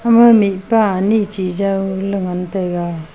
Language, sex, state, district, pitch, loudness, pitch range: Wancho, female, Arunachal Pradesh, Longding, 195 Hz, -16 LUFS, 180-210 Hz